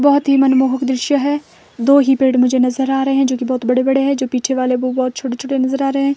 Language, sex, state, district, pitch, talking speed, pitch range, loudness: Hindi, female, Himachal Pradesh, Shimla, 265 Hz, 290 wpm, 255-275 Hz, -15 LUFS